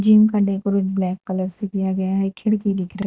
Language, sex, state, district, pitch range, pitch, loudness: Hindi, female, Gujarat, Valsad, 190-205 Hz, 195 Hz, -20 LUFS